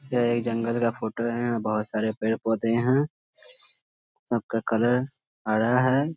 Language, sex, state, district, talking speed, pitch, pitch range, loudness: Hindi, male, Bihar, Muzaffarpur, 185 wpm, 115 Hz, 110-125 Hz, -25 LUFS